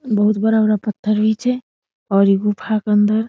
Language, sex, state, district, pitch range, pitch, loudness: Maithili, female, Bihar, Samastipur, 210-220 Hz, 215 Hz, -17 LUFS